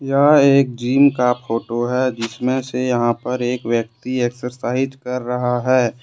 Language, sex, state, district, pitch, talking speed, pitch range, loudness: Hindi, male, Jharkhand, Deoghar, 125 Hz, 160 wpm, 120-130 Hz, -18 LUFS